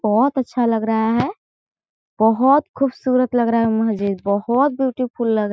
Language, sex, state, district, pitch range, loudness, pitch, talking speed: Hindi, female, Chhattisgarh, Korba, 220-260 Hz, -18 LUFS, 235 Hz, 175 wpm